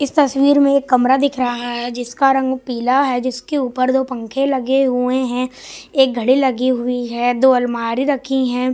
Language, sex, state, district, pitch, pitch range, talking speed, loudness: Hindi, male, Bihar, West Champaran, 255 Hz, 245-270 Hz, 190 wpm, -17 LUFS